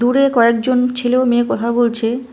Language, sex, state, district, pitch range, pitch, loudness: Bengali, female, West Bengal, Cooch Behar, 235-250 Hz, 245 Hz, -15 LUFS